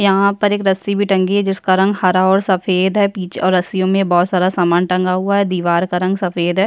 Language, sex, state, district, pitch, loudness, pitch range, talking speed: Hindi, female, Chhattisgarh, Jashpur, 190 Hz, -15 LUFS, 185-195 Hz, 250 wpm